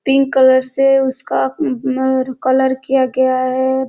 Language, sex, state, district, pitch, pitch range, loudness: Hindi, female, Bihar, Gopalganj, 260 Hz, 260-270 Hz, -15 LUFS